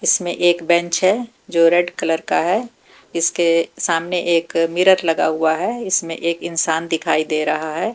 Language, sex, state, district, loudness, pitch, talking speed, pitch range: Hindi, female, Haryana, Jhajjar, -18 LUFS, 170 Hz, 175 wpm, 165-175 Hz